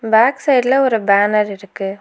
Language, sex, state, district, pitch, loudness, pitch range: Tamil, female, Tamil Nadu, Nilgiris, 220 Hz, -15 LUFS, 200-255 Hz